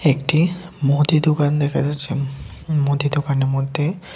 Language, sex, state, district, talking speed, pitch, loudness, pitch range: Bengali, male, Tripura, West Tripura, 115 wpm, 145 Hz, -19 LUFS, 140-155 Hz